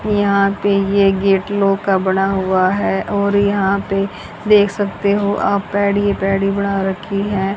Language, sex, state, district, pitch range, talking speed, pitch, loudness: Hindi, female, Haryana, Charkhi Dadri, 195-200 Hz, 175 wpm, 200 Hz, -16 LUFS